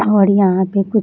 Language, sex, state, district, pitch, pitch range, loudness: Hindi, female, Bihar, Jamui, 200 Hz, 195-205 Hz, -14 LUFS